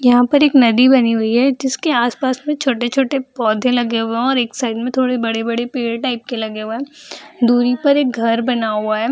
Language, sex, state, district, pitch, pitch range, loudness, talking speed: Hindi, female, Bihar, Jahanabad, 245 Hz, 230-265 Hz, -16 LUFS, 230 wpm